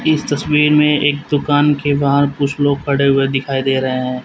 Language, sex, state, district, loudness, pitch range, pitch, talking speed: Hindi, male, Uttar Pradesh, Lalitpur, -15 LUFS, 135-145 Hz, 145 Hz, 210 wpm